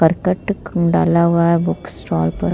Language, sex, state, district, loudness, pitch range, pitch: Hindi, female, Bihar, Vaishali, -17 LUFS, 165-180 Hz, 170 Hz